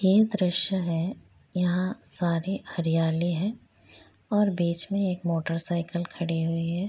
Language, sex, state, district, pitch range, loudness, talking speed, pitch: Hindi, female, Jharkhand, Jamtara, 170-190 Hz, -27 LUFS, 130 wpm, 175 Hz